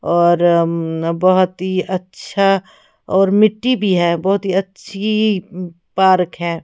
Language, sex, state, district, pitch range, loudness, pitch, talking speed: Hindi, female, Odisha, Khordha, 175-200 Hz, -16 LUFS, 185 Hz, 125 wpm